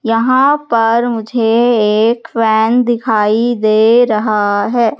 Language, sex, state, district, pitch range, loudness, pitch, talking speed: Hindi, female, Madhya Pradesh, Katni, 220-240 Hz, -12 LUFS, 230 Hz, 110 wpm